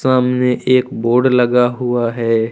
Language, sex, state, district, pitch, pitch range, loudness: Hindi, male, Jharkhand, Ranchi, 125 Hz, 120-125 Hz, -15 LUFS